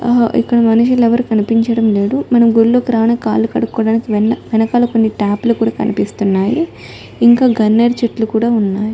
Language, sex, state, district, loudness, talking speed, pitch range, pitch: Telugu, female, Telangana, Nalgonda, -13 LUFS, 150 wpm, 220-240 Hz, 230 Hz